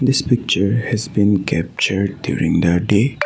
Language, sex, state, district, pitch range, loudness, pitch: English, male, Assam, Sonitpur, 95-120 Hz, -17 LUFS, 100 Hz